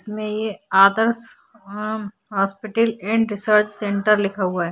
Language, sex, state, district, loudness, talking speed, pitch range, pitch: Hindi, female, Bihar, Vaishali, -20 LUFS, 150 wpm, 200-220 Hz, 210 Hz